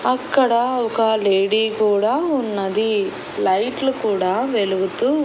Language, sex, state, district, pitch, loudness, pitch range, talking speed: Telugu, female, Andhra Pradesh, Annamaya, 220 Hz, -19 LUFS, 200-255 Hz, 90 wpm